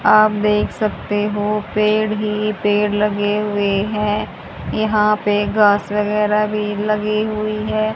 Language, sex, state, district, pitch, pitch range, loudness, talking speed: Hindi, female, Haryana, Jhajjar, 210 Hz, 210-215 Hz, -18 LUFS, 135 wpm